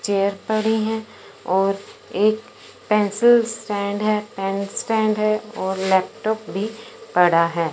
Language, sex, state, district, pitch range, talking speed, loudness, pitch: Hindi, male, Punjab, Fazilka, 195-220 Hz, 125 wpm, -21 LUFS, 210 Hz